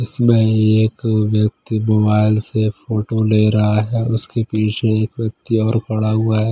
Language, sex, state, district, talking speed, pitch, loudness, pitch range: Hindi, male, Chandigarh, Chandigarh, 155 wpm, 110 Hz, -17 LUFS, 110-115 Hz